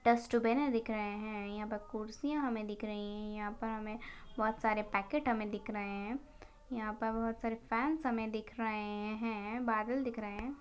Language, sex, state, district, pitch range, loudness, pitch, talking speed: Hindi, female, Bihar, Gaya, 210-235 Hz, -37 LUFS, 220 Hz, 190 wpm